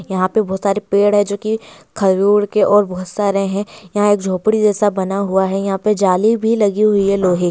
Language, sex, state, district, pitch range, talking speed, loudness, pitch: Hindi, female, West Bengal, Purulia, 190-210 Hz, 240 wpm, -16 LUFS, 200 Hz